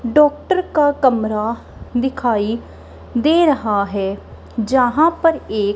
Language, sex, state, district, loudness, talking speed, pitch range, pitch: Hindi, female, Punjab, Kapurthala, -17 LUFS, 105 wpm, 220-300 Hz, 250 Hz